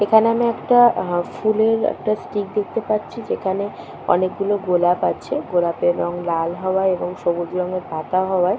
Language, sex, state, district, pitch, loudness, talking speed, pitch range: Bengali, female, West Bengal, Purulia, 185 Hz, -20 LUFS, 160 wpm, 175-215 Hz